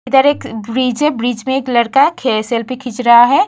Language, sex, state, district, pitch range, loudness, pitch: Hindi, female, Bihar, Vaishali, 235-270 Hz, -14 LUFS, 250 Hz